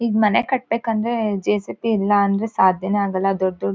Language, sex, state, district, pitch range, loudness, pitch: Kannada, female, Karnataka, Shimoga, 195-225 Hz, -20 LUFS, 205 Hz